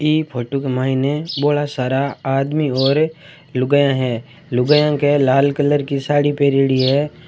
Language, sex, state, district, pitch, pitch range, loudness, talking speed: Marwari, male, Rajasthan, Churu, 140 Hz, 130-145 Hz, -17 LUFS, 150 wpm